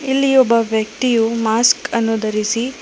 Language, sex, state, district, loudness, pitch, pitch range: Kannada, female, Karnataka, Bangalore, -16 LUFS, 230 Hz, 220-250 Hz